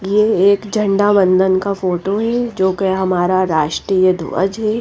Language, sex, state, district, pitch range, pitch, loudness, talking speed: Hindi, female, Odisha, Nuapada, 185-205 Hz, 190 Hz, -15 LUFS, 160 wpm